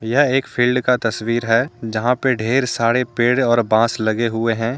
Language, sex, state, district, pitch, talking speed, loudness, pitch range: Hindi, male, Jharkhand, Deoghar, 120 Hz, 200 wpm, -18 LUFS, 115-125 Hz